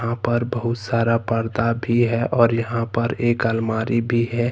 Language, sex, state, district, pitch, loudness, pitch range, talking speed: Hindi, male, Jharkhand, Ranchi, 115 Hz, -21 LUFS, 115-120 Hz, 170 wpm